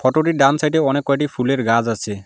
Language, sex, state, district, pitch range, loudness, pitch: Bengali, male, West Bengal, Alipurduar, 115-150 Hz, -17 LUFS, 135 Hz